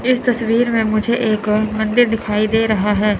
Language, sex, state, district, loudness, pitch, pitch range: Hindi, male, Chandigarh, Chandigarh, -16 LUFS, 220 Hz, 215-235 Hz